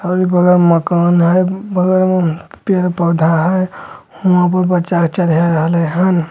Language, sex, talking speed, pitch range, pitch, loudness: Bajjika, male, 150 wpm, 170-185 Hz, 180 Hz, -13 LUFS